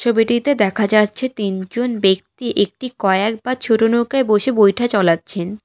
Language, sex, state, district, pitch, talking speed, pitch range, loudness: Bengali, female, West Bengal, Alipurduar, 215 Hz, 150 wpm, 200-240 Hz, -17 LUFS